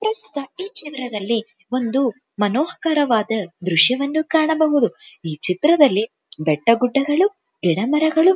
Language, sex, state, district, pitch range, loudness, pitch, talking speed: Kannada, female, Karnataka, Dharwad, 215-315 Hz, -19 LUFS, 265 Hz, 100 wpm